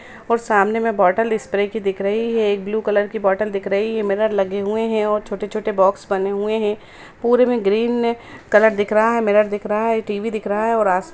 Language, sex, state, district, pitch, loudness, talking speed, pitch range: Hindi, female, Bihar, Sitamarhi, 210 Hz, -19 LUFS, 225 wpm, 200-225 Hz